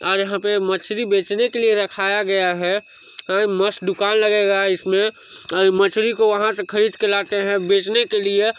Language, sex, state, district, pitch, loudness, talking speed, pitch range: Hindi, male, Chhattisgarh, Sarguja, 200 Hz, -19 LUFS, 175 wpm, 195-215 Hz